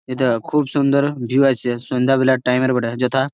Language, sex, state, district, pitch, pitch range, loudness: Bengali, male, West Bengal, Malda, 130 Hz, 125-135 Hz, -18 LUFS